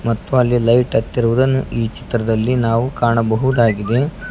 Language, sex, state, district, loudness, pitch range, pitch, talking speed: Kannada, male, Karnataka, Koppal, -16 LUFS, 115-125 Hz, 120 Hz, 110 wpm